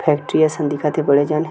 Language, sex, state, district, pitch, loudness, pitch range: Chhattisgarhi, male, Chhattisgarh, Sukma, 150 Hz, -17 LUFS, 145-155 Hz